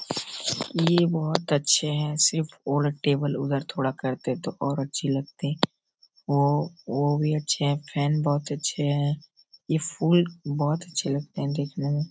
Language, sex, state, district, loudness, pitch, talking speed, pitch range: Hindi, male, Bihar, Darbhanga, -26 LUFS, 145 Hz, 160 wpm, 140-160 Hz